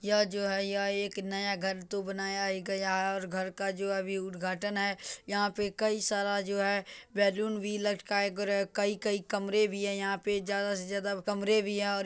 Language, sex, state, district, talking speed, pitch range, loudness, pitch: Maithili, male, Bihar, Madhepura, 215 wpm, 195-205 Hz, -32 LUFS, 200 Hz